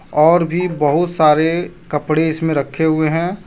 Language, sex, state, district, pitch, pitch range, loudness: Hindi, male, Jharkhand, Deoghar, 160 Hz, 155-170 Hz, -16 LUFS